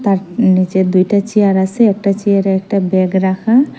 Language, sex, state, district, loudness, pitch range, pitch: Bengali, female, Assam, Hailakandi, -13 LUFS, 190-205 Hz, 195 Hz